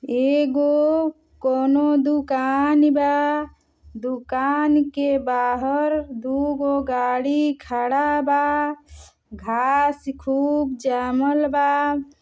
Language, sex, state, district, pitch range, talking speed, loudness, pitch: Bhojpuri, female, Uttar Pradesh, Deoria, 265-295 Hz, 75 wpm, -21 LUFS, 285 Hz